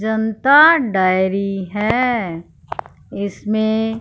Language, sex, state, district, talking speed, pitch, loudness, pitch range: Hindi, female, Punjab, Fazilka, 60 wpm, 215 Hz, -16 LUFS, 195-225 Hz